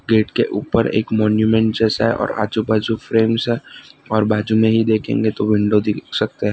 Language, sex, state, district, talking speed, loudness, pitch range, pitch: Hindi, male, Gujarat, Valsad, 200 wpm, -18 LUFS, 105-115 Hz, 110 Hz